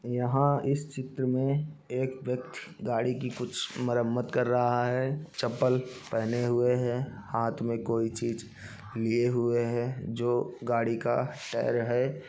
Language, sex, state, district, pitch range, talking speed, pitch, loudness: Hindi, male, Chhattisgarh, Balrampur, 115-130 Hz, 140 wpm, 120 Hz, -30 LUFS